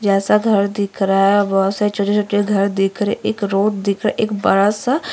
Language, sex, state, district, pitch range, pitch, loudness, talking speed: Hindi, female, Uttarakhand, Tehri Garhwal, 195-210 Hz, 205 Hz, -17 LUFS, 220 wpm